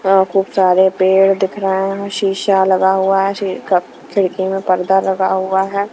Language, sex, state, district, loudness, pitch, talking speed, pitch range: Hindi, female, Himachal Pradesh, Shimla, -15 LUFS, 190 Hz, 180 wpm, 190-195 Hz